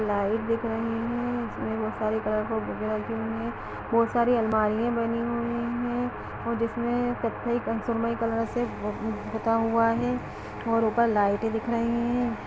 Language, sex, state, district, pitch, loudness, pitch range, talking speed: Hindi, female, Uttar Pradesh, Etah, 230 Hz, -27 LUFS, 220-235 Hz, 165 wpm